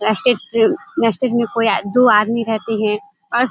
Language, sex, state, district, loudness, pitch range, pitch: Hindi, female, Bihar, Kishanganj, -17 LUFS, 215-245 Hz, 230 Hz